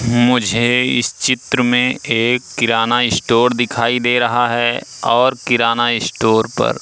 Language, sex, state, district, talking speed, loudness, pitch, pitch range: Hindi, male, Madhya Pradesh, Katni, 130 wpm, -15 LUFS, 120 Hz, 115-125 Hz